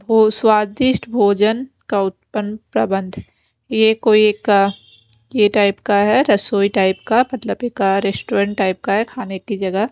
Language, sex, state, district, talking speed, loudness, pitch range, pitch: Hindi, female, Bihar, West Champaran, 170 wpm, -17 LUFS, 195-220 Hz, 205 Hz